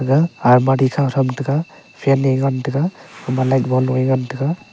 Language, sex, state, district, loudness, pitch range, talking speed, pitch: Wancho, male, Arunachal Pradesh, Longding, -17 LUFS, 130-135 Hz, 150 wpm, 135 Hz